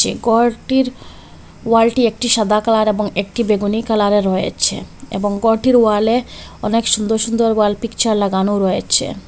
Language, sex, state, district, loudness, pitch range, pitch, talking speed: Bengali, female, Assam, Hailakandi, -16 LUFS, 205-230 Hz, 220 Hz, 135 wpm